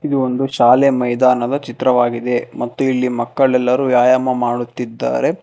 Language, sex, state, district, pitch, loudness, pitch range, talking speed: Kannada, male, Karnataka, Bangalore, 125 Hz, -16 LUFS, 120-130 Hz, 110 wpm